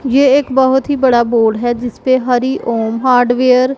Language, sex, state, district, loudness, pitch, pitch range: Hindi, female, Punjab, Pathankot, -13 LUFS, 255 Hz, 240-265 Hz